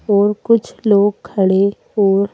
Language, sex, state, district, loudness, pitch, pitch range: Hindi, female, Madhya Pradesh, Bhopal, -15 LUFS, 200 Hz, 200-210 Hz